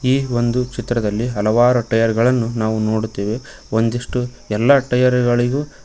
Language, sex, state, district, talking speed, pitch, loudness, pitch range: Kannada, male, Karnataka, Koppal, 125 wpm, 120 Hz, -18 LUFS, 110-125 Hz